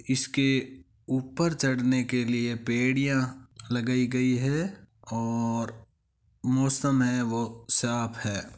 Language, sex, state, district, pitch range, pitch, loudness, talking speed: Hindi, male, Rajasthan, Nagaur, 115-130 Hz, 125 Hz, -27 LUFS, 105 wpm